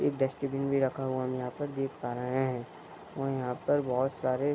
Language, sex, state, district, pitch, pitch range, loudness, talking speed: Hindi, male, Bihar, Bhagalpur, 130 Hz, 130-135 Hz, -32 LUFS, 235 wpm